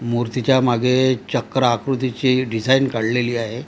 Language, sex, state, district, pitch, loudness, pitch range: Marathi, male, Maharashtra, Gondia, 125 Hz, -19 LUFS, 120-130 Hz